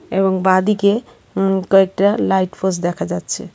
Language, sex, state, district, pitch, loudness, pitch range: Bengali, female, Tripura, West Tripura, 190 Hz, -17 LUFS, 185-195 Hz